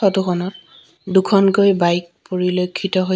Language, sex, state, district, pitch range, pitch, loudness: Assamese, female, Assam, Sonitpur, 180-195 Hz, 185 Hz, -17 LUFS